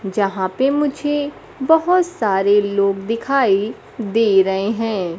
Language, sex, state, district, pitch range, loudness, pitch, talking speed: Hindi, female, Bihar, Kaimur, 195-280 Hz, -18 LUFS, 220 Hz, 115 wpm